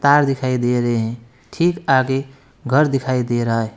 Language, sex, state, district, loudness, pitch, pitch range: Hindi, male, West Bengal, Alipurduar, -18 LUFS, 130 Hz, 120-135 Hz